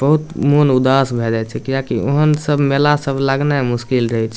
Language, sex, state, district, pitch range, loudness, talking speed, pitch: Maithili, male, Bihar, Samastipur, 120-145 Hz, -16 LUFS, 220 wpm, 135 Hz